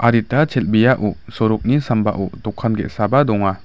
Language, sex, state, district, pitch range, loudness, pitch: Garo, male, Meghalaya, West Garo Hills, 105-125 Hz, -18 LUFS, 110 Hz